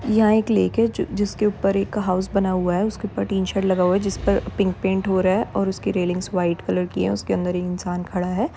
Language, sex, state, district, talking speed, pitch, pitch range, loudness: Hindi, female, Uttarakhand, Tehri Garhwal, 260 wpm, 190 Hz, 180-200 Hz, -22 LUFS